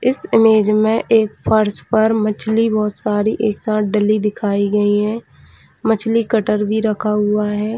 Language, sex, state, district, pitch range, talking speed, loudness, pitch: Hindi, female, Chhattisgarh, Bilaspur, 210-220 Hz, 160 wpm, -16 LUFS, 215 Hz